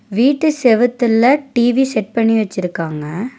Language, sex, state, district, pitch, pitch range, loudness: Tamil, female, Tamil Nadu, Nilgiris, 235 Hz, 215-260 Hz, -15 LUFS